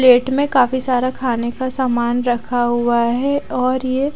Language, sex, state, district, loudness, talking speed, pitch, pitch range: Hindi, female, Odisha, Khordha, -17 LUFS, 175 wpm, 255 Hz, 240-260 Hz